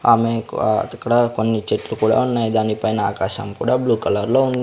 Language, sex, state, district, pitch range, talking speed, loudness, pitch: Telugu, male, Andhra Pradesh, Sri Satya Sai, 110-120 Hz, 180 wpm, -19 LUFS, 115 Hz